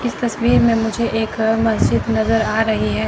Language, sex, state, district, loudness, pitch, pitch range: Hindi, female, Chandigarh, Chandigarh, -17 LUFS, 225 Hz, 220-230 Hz